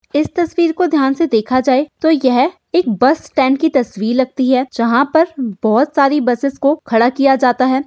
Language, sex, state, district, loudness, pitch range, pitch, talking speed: Hindi, female, Uttar Pradesh, Hamirpur, -14 LUFS, 255-300 Hz, 270 Hz, 190 wpm